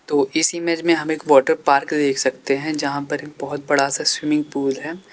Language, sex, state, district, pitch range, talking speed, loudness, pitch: Hindi, male, Uttar Pradesh, Lalitpur, 140-155 Hz, 220 wpm, -19 LUFS, 145 Hz